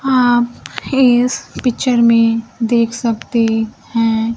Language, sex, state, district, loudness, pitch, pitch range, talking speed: Hindi, female, Bihar, Kaimur, -15 LUFS, 235 Hz, 230-245 Hz, 95 wpm